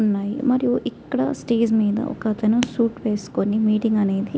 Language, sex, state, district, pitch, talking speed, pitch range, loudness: Telugu, female, Andhra Pradesh, Visakhapatnam, 220 Hz, 135 wpm, 210-245 Hz, -21 LUFS